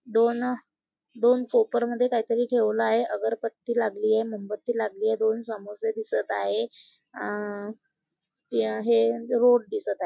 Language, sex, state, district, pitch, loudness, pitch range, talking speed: Marathi, female, Maharashtra, Nagpur, 225 Hz, -26 LUFS, 210-240 Hz, 125 wpm